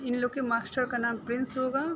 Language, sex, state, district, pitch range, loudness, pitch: Hindi, female, Uttar Pradesh, Gorakhpur, 235-260 Hz, -30 LUFS, 250 Hz